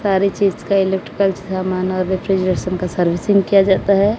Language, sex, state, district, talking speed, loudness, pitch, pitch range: Hindi, female, Odisha, Malkangiri, 170 wpm, -17 LUFS, 190 Hz, 185-195 Hz